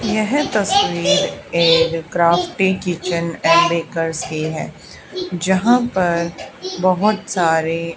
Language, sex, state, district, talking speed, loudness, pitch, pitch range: Hindi, female, Haryana, Charkhi Dadri, 100 wpm, -17 LUFS, 175 Hz, 165-190 Hz